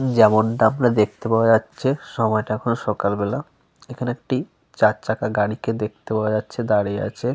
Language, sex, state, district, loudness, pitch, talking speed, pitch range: Bengali, male, Jharkhand, Sahebganj, -21 LUFS, 110 Hz, 155 wpm, 105-125 Hz